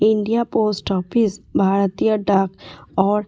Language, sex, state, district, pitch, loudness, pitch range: Hindi, female, Delhi, New Delhi, 205 Hz, -19 LUFS, 195-215 Hz